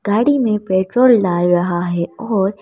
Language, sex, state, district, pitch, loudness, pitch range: Hindi, female, Madhya Pradesh, Bhopal, 195 Hz, -16 LUFS, 175-230 Hz